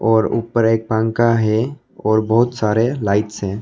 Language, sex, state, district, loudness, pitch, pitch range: Hindi, male, Arunachal Pradesh, Lower Dibang Valley, -17 LUFS, 110 Hz, 110-115 Hz